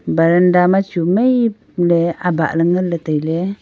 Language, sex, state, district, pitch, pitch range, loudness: Wancho, female, Arunachal Pradesh, Longding, 175 Hz, 165-185 Hz, -15 LUFS